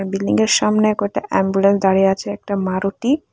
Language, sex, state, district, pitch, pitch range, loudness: Bengali, female, Tripura, West Tripura, 195 Hz, 195-205 Hz, -17 LUFS